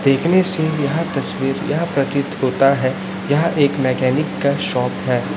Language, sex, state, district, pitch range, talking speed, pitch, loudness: Hindi, male, Chhattisgarh, Raipur, 135-160 Hz, 155 wpm, 140 Hz, -18 LUFS